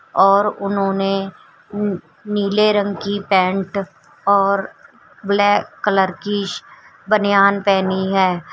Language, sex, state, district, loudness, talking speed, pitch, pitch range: Hindi, female, Uttar Pradesh, Shamli, -18 LUFS, 90 wpm, 200 Hz, 190-205 Hz